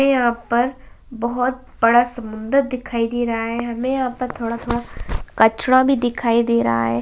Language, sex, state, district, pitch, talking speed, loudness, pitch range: Hindi, female, Chhattisgarh, Bastar, 240 Hz, 180 wpm, -19 LUFS, 230-255 Hz